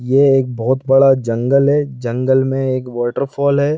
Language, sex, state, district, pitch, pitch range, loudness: Hindi, male, Chhattisgarh, Bilaspur, 130 Hz, 125-140 Hz, -15 LUFS